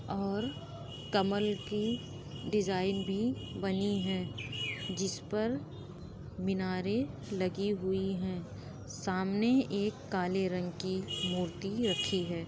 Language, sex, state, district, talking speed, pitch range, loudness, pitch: Hindi, female, Uttar Pradesh, Budaun, 100 wpm, 180-200 Hz, -34 LUFS, 190 Hz